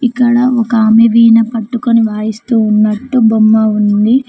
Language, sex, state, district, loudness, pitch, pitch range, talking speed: Telugu, female, Telangana, Mahabubabad, -10 LUFS, 230 Hz, 220-240 Hz, 125 wpm